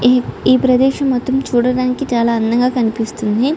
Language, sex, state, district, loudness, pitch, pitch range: Telugu, female, Andhra Pradesh, Chittoor, -15 LUFS, 250 Hz, 235-260 Hz